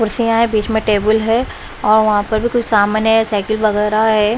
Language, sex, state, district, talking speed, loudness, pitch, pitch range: Hindi, female, Bihar, West Champaran, 220 wpm, -15 LUFS, 220 Hz, 210-225 Hz